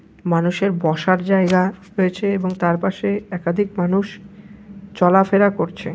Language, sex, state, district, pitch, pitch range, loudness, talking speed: Bengali, male, West Bengal, Malda, 190 Hz, 180-200 Hz, -19 LUFS, 120 wpm